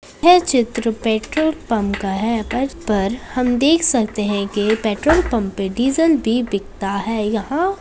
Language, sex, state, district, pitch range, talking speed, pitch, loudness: Hindi, female, Bihar, Saharsa, 210-275 Hz, 160 wpm, 230 Hz, -18 LUFS